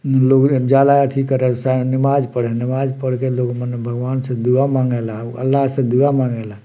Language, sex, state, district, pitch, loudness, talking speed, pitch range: Bhojpuri, male, Bihar, Muzaffarpur, 130 Hz, -17 LUFS, 180 wpm, 125-135 Hz